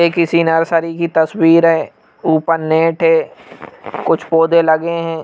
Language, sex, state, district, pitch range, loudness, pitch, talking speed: Hindi, male, Madhya Pradesh, Bhopal, 165-170 Hz, -14 LUFS, 165 Hz, 150 wpm